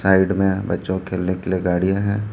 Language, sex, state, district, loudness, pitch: Hindi, male, Chhattisgarh, Raipur, -20 LUFS, 95 Hz